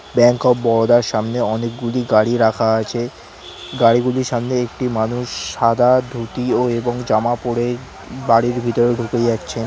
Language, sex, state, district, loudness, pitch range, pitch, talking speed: Bengali, male, West Bengal, North 24 Parganas, -17 LUFS, 115-125 Hz, 120 Hz, 150 wpm